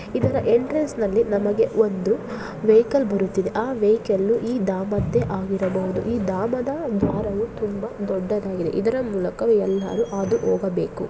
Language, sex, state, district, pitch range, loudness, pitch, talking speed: Kannada, female, Karnataka, Dakshina Kannada, 195-230 Hz, -22 LUFS, 210 Hz, 115 wpm